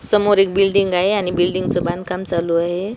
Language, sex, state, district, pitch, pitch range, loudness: Marathi, female, Maharashtra, Washim, 185 Hz, 175-195 Hz, -17 LUFS